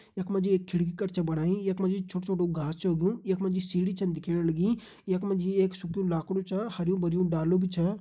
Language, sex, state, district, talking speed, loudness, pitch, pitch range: Hindi, male, Uttarakhand, Uttarkashi, 260 wpm, -29 LUFS, 185 Hz, 175-195 Hz